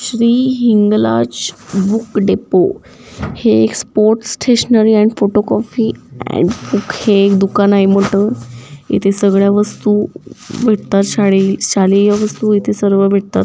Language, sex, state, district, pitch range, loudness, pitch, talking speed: Marathi, female, Maharashtra, Dhule, 195-215 Hz, -13 LUFS, 205 Hz, 115 wpm